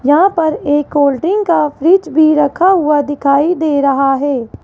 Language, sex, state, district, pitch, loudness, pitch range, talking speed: Hindi, female, Rajasthan, Jaipur, 295 Hz, -12 LUFS, 285-330 Hz, 180 wpm